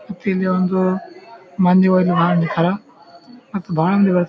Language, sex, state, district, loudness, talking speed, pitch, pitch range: Kannada, male, Karnataka, Bijapur, -17 LUFS, 155 wpm, 185 Hz, 175-200 Hz